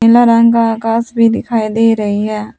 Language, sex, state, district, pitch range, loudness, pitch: Hindi, female, Jharkhand, Palamu, 220-230 Hz, -12 LUFS, 225 Hz